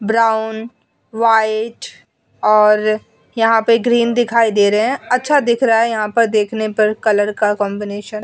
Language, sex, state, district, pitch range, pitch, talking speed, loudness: Hindi, female, Uttar Pradesh, Hamirpur, 215-230 Hz, 220 Hz, 160 wpm, -15 LUFS